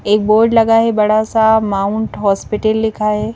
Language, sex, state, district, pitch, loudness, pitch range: Hindi, female, Madhya Pradesh, Bhopal, 215 Hz, -14 LUFS, 210-220 Hz